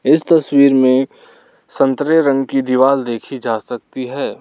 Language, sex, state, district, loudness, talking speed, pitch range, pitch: Hindi, male, Arunachal Pradesh, Lower Dibang Valley, -15 LUFS, 150 wpm, 130-150 Hz, 135 Hz